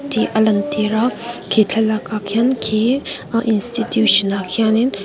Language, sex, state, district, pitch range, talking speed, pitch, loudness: Mizo, female, Mizoram, Aizawl, 210-235 Hz, 165 wpm, 220 Hz, -17 LUFS